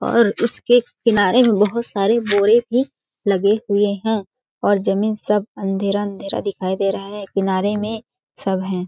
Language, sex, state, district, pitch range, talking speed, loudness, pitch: Hindi, female, Chhattisgarh, Balrampur, 195-230 Hz, 155 wpm, -19 LUFS, 205 Hz